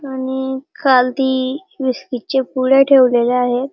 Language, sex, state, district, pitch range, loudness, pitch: Marathi, female, Maharashtra, Dhule, 250-270 Hz, -16 LUFS, 260 Hz